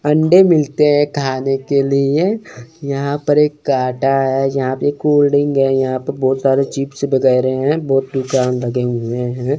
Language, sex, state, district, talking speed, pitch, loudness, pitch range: Hindi, male, Chandigarh, Chandigarh, 170 wpm, 135 Hz, -15 LUFS, 130-145 Hz